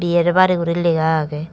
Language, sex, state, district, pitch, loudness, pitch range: Chakma, female, Tripura, Dhalai, 170 Hz, -17 LUFS, 160-175 Hz